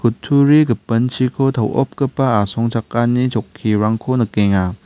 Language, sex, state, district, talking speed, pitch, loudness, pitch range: Garo, male, Meghalaya, West Garo Hills, 60 wpm, 120 Hz, -16 LUFS, 110-135 Hz